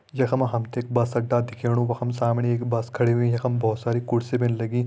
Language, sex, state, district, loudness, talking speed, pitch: Hindi, male, Uttarakhand, Uttarkashi, -24 LUFS, 260 wpm, 120 Hz